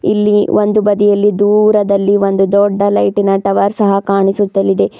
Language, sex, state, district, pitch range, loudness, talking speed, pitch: Kannada, female, Karnataka, Bidar, 195-205 Hz, -12 LUFS, 120 wpm, 200 Hz